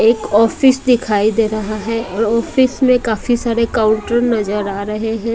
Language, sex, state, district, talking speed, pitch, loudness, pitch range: Hindi, female, Odisha, Malkangiri, 180 wpm, 225 Hz, -15 LUFS, 215-240 Hz